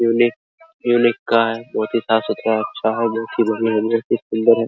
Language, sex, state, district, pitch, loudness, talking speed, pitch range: Hindi, male, Bihar, Araria, 115 Hz, -19 LUFS, 205 wpm, 110-120 Hz